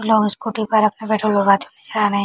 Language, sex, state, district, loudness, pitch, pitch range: Hindi, female, Chhattisgarh, Bilaspur, -18 LUFS, 215 Hz, 205-220 Hz